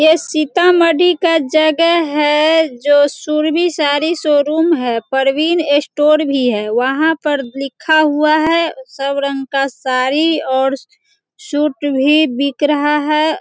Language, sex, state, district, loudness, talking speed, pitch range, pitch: Hindi, female, Bihar, Sitamarhi, -14 LUFS, 130 wpm, 275-320 Hz, 300 Hz